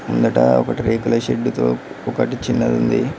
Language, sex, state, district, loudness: Telugu, male, Telangana, Mahabubabad, -18 LUFS